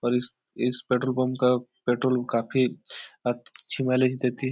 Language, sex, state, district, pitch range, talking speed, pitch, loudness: Hindi, male, Bihar, Supaul, 120-130 Hz, 145 wpm, 125 Hz, -26 LUFS